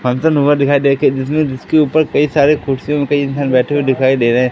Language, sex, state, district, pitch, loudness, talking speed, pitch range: Hindi, male, Madhya Pradesh, Katni, 140 Hz, -14 LUFS, 240 wpm, 130-145 Hz